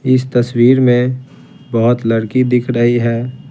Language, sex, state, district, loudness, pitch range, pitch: Hindi, male, Bihar, Patna, -14 LUFS, 120-130 Hz, 125 Hz